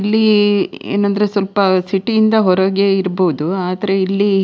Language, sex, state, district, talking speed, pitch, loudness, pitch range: Kannada, female, Karnataka, Dakshina Kannada, 160 wpm, 195 Hz, -15 LUFS, 190-205 Hz